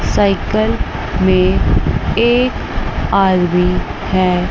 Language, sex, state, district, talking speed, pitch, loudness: Hindi, female, Chandigarh, Chandigarh, 65 wpm, 180 Hz, -15 LUFS